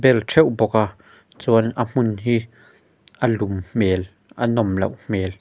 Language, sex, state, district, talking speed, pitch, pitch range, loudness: Mizo, male, Mizoram, Aizawl, 155 wpm, 110 Hz, 100-120 Hz, -20 LUFS